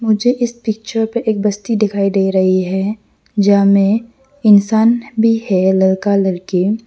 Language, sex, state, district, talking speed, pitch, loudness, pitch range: Hindi, female, Arunachal Pradesh, Lower Dibang Valley, 150 wpm, 210 Hz, -14 LUFS, 195-225 Hz